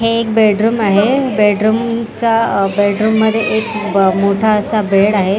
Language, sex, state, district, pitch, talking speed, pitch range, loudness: Marathi, female, Maharashtra, Mumbai Suburban, 215 Hz, 165 wpm, 205-225 Hz, -13 LUFS